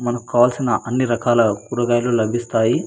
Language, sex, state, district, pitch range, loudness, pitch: Telugu, male, Andhra Pradesh, Anantapur, 115-120 Hz, -18 LUFS, 120 Hz